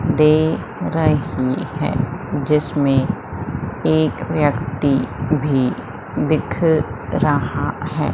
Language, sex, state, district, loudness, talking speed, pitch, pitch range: Hindi, female, Madhya Pradesh, Umaria, -19 LUFS, 75 wpm, 150 Hz, 135-155 Hz